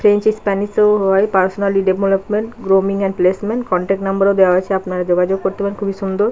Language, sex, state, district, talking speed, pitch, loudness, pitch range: Bengali, female, West Bengal, Paschim Medinipur, 190 wpm, 195 Hz, -16 LUFS, 190-205 Hz